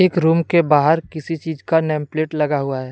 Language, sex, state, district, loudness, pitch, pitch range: Hindi, male, Jharkhand, Deoghar, -18 LUFS, 155 Hz, 150-165 Hz